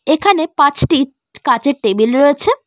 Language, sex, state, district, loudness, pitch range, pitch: Bengali, female, West Bengal, Cooch Behar, -14 LUFS, 275-320 Hz, 285 Hz